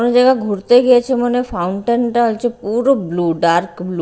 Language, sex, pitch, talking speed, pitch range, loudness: Bengali, female, 235 Hz, 210 wpm, 180-245 Hz, -15 LUFS